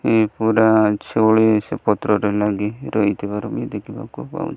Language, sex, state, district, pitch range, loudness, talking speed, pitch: Odia, male, Odisha, Malkangiri, 105-110 Hz, -18 LUFS, 90 wpm, 105 Hz